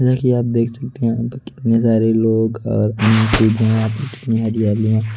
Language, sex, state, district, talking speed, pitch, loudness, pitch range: Hindi, male, Odisha, Nuapada, 160 wpm, 115 Hz, -17 LUFS, 110-120 Hz